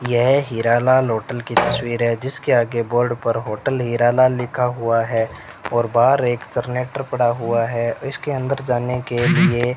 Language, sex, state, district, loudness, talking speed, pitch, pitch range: Hindi, male, Rajasthan, Bikaner, -19 LUFS, 170 wpm, 120 Hz, 115-130 Hz